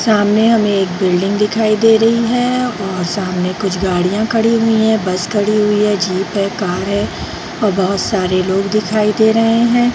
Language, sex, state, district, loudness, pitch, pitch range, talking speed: Hindi, female, Bihar, Jahanabad, -14 LUFS, 210 Hz, 190-220 Hz, 195 wpm